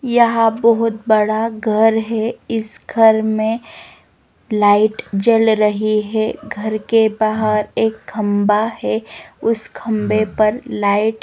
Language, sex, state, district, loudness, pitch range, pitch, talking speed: Hindi, female, Himachal Pradesh, Shimla, -16 LUFS, 215-225 Hz, 220 Hz, 125 wpm